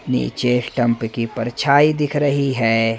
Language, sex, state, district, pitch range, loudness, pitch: Hindi, male, Madhya Pradesh, Umaria, 115-140 Hz, -18 LUFS, 120 Hz